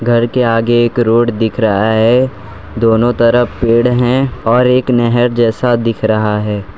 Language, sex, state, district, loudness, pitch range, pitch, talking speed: Hindi, male, Gujarat, Valsad, -12 LUFS, 110-120 Hz, 115 Hz, 170 wpm